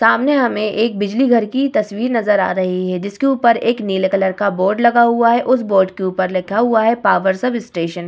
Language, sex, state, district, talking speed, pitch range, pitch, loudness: Hindi, female, Bihar, Vaishali, 230 wpm, 190-235 Hz, 215 Hz, -16 LUFS